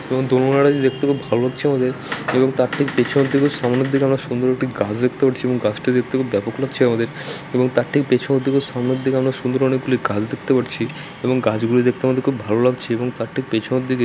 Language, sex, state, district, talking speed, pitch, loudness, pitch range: Bengali, male, West Bengal, Dakshin Dinajpur, 210 wpm, 130 Hz, -19 LUFS, 125-135 Hz